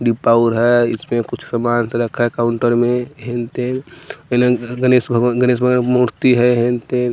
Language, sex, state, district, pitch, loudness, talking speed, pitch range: Hindi, male, Bihar, West Champaran, 120 Hz, -16 LUFS, 160 wpm, 120-125 Hz